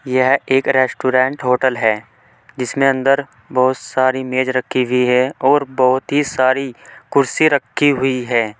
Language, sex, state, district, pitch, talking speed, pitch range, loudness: Hindi, male, Uttar Pradesh, Saharanpur, 130 Hz, 145 wpm, 130-135 Hz, -16 LUFS